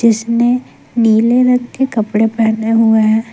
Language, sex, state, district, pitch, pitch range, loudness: Hindi, female, Jharkhand, Ranchi, 225 Hz, 220-240 Hz, -13 LUFS